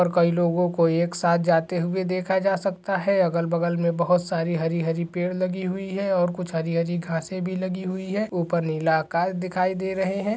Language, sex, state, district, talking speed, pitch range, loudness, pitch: Hindi, male, Chhattisgarh, Balrampur, 225 wpm, 170-185 Hz, -24 LUFS, 180 Hz